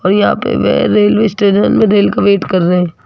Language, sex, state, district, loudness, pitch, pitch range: Hindi, female, Rajasthan, Jaipur, -11 LUFS, 200 Hz, 185-205 Hz